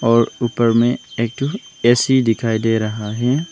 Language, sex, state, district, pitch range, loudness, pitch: Hindi, male, Arunachal Pradesh, Longding, 115-125 Hz, -18 LUFS, 115 Hz